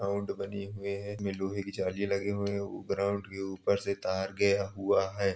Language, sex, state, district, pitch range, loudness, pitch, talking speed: Hindi, male, Uttar Pradesh, Jalaun, 95-100 Hz, -32 LUFS, 100 Hz, 210 wpm